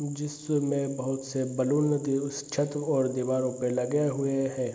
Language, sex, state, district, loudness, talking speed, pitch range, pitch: Hindi, male, Bihar, Darbhanga, -28 LUFS, 165 wpm, 130-145 Hz, 135 Hz